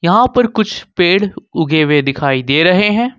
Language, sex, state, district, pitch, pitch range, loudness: Hindi, male, Jharkhand, Ranchi, 180 Hz, 155-220 Hz, -13 LUFS